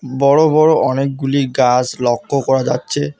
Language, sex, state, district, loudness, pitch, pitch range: Bengali, male, West Bengal, Alipurduar, -15 LUFS, 135 Hz, 125-145 Hz